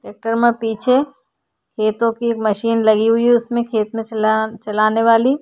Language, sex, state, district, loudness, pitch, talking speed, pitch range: Hindi, female, Uttar Pradesh, Hamirpur, -17 LUFS, 225 Hz, 175 wpm, 215-235 Hz